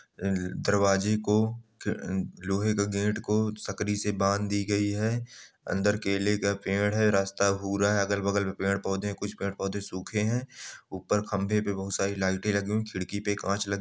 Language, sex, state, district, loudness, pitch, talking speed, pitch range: Angika, male, Bihar, Samastipur, -28 LUFS, 100 Hz, 180 wpm, 100-105 Hz